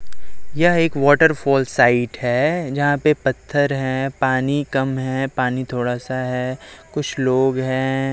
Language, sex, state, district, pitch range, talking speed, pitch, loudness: Hindi, male, Chhattisgarh, Raipur, 130-145 Hz, 140 wpm, 135 Hz, -19 LUFS